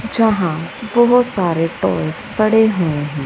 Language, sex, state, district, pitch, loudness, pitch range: Hindi, female, Punjab, Fazilka, 190 Hz, -16 LUFS, 160-225 Hz